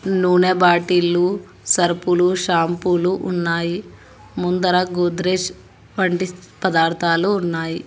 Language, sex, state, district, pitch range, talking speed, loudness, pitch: Telugu, male, Telangana, Hyderabad, 175-185 Hz, 75 wpm, -18 LUFS, 180 Hz